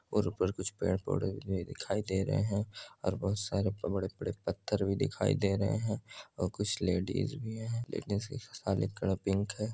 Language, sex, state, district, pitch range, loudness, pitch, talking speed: Hindi, male, Andhra Pradesh, Chittoor, 95-110 Hz, -34 LUFS, 100 Hz, 165 wpm